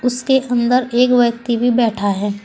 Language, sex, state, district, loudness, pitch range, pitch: Hindi, female, Uttar Pradesh, Saharanpur, -16 LUFS, 235-250 Hz, 245 Hz